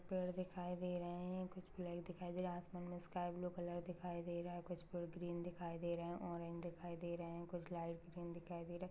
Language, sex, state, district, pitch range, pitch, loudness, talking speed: Hindi, male, Maharashtra, Dhule, 170-180 Hz, 175 Hz, -48 LUFS, 255 wpm